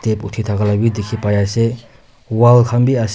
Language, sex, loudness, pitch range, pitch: Nagamese, male, -15 LUFS, 105-120 Hz, 115 Hz